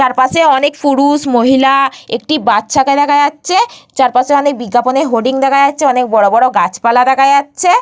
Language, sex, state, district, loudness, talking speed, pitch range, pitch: Bengali, female, West Bengal, Paschim Medinipur, -11 LUFS, 160 wpm, 250-285 Hz, 270 Hz